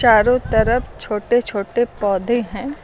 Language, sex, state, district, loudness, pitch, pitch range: Hindi, female, Uttar Pradesh, Lucknow, -19 LUFS, 235 Hz, 210-240 Hz